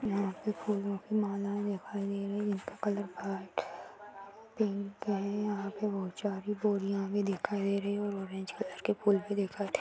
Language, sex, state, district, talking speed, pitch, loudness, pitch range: Hindi, female, Uttar Pradesh, Jyotiba Phule Nagar, 195 wpm, 200 Hz, -34 LUFS, 200-205 Hz